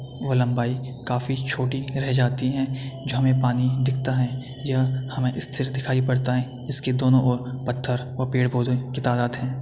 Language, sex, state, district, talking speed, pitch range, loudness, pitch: Hindi, male, Uttar Pradesh, Etah, 170 wpm, 125-130 Hz, -23 LUFS, 130 Hz